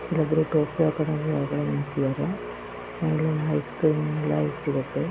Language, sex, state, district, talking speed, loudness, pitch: Kannada, female, Karnataka, Raichur, 95 wpm, -26 LUFS, 150 Hz